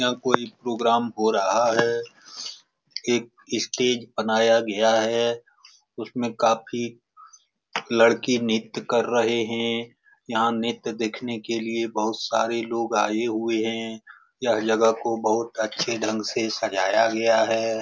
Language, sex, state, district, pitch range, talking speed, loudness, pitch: Hindi, male, Bihar, Lakhisarai, 110-120 Hz, 130 wpm, -23 LUFS, 115 Hz